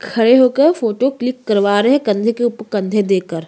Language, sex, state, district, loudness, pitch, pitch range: Hindi, female, Uttarakhand, Tehri Garhwal, -15 LUFS, 225 Hz, 205-255 Hz